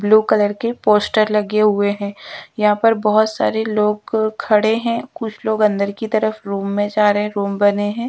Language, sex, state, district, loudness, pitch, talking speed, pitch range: Hindi, female, Bihar, Patna, -17 LUFS, 210 Hz, 200 wpm, 205-220 Hz